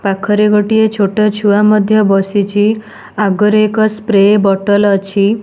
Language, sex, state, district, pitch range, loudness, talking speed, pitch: Odia, female, Odisha, Nuapada, 200-215 Hz, -11 LUFS, 130 wpm, 210 Hz